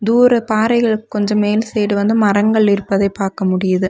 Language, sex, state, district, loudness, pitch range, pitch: Tamil, female, Tamil Nadu, Nilgiris, -15 LUFS, 200-220 Hz, 210 Hz